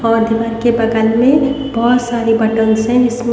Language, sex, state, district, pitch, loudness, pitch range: Hindi, female, Haryana, Rohtak, 230 Hz, -13 LUFS, 225-245 Hz